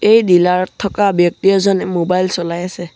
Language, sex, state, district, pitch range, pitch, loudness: Assamese, male, Assam, Sonitpur, 175-195 Hz, 185 Hz, -14 LUFS